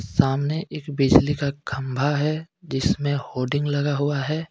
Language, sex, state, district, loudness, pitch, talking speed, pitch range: Hindi, male, Jharkhand, Deoghar, -23 LUFS, 145 Hz, 145 wpm, 135-150 Hz